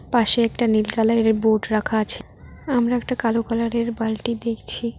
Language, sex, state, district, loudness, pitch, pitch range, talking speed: Bengali, female, West Bengal, Cooch Behar, -20 LUFS, 230 Hz, 220-235 Hz, 155 wpm